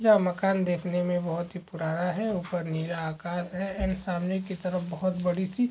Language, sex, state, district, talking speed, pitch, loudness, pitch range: Hindi, male, Maharashtra, Aurangabad, 190 wpm, 180 Hz, -29 LUFS, 175-190 Hz